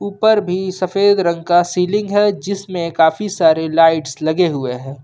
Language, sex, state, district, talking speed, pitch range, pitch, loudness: Hindi, male, Jharkhand, Ranchi, 165 wpm, 160-200 Hz, 180 Hz, -16 LUFS